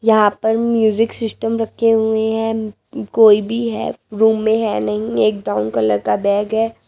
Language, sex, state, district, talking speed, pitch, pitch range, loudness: Hindi, female, Delhi, New Delhi, 175 wpm, 220 Hz, 205-225 Hz, -17 LUFS